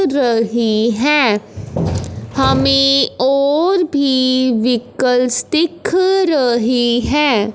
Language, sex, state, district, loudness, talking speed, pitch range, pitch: Hindi, male, Punjab, Fazilka, -14 LUFS, 70 wpm, 220-290 Hz, 250 Hz